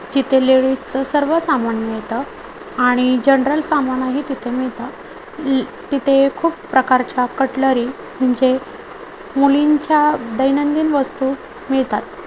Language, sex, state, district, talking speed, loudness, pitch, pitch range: Marathi, female, Maharashtra, Chandrapur, 110 wpm, -17 LUFS, 270 Hz, 255-295 Hz